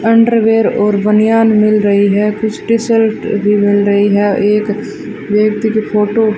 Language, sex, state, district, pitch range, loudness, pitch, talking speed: Hindi, female, Rajasthan, Bikaner, 205-220 Hz, -12 LUFS, 210 Hz, 160 wpm